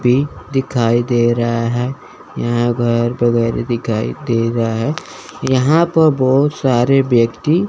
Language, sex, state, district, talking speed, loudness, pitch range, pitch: Hindi, male, Chandigarh, Chandigarh, 140 wpm, -16 LUFS, 115-135 Hz, 120 Hz